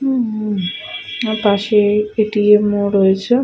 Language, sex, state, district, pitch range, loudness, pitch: Bengali, female, West Bengal, Paschim Medinipur, 205-215 Hz, -16 LUFS, 210 Hz